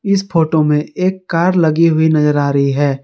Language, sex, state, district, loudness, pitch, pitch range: Hindi, male, Jharkhand, Garhwa, -14 LUFS, 160 Hz, 150-175 Hz